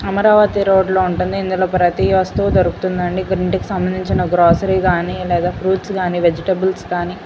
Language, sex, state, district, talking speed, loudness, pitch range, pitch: Telugu, female, Andhra Pradesh, Guntur, 150 wpm, -16 LUFS, 180-190 Hz, 185 Hz